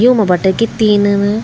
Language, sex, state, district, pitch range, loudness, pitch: Garhwali, female, Uttarakhand, Tehri Garhwal, 200-225 Hz, -12 LUFS, 210 Hz